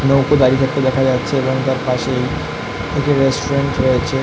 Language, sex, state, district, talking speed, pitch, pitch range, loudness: Bengali, male, West Bengal, North 24 Parganas, 155 wpm, 135 Hz, 130-140 Hz, -16 LUFS